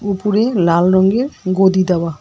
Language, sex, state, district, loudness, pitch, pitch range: Bengali, female, West Bengal, Alipurduar, -14 LUFS, 190 Hz, 180-205 Hz